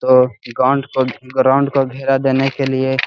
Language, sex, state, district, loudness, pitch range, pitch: Hindi, male, Bihar, Gaya, -16 LUFS, 130-135 Hz, 130 Hz